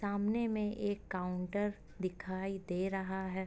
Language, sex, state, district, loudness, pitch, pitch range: Hindi, female, Uttar Pradesh, Ghazipur, -37 LUFS, 195 Hz, 185-205 Hz